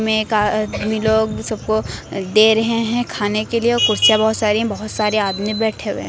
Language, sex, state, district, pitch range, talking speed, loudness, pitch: Hindi, female, Uttar Pradesh, Lucknow, 215-220 Hz, 215 wpm, -17 LUFS, 215 Hz